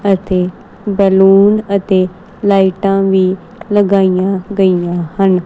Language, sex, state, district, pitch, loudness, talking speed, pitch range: Punjabi, female, Punjab, Kapurthala, 195 Hz, -12 LUFS, 90 wpm, 185-200 Hz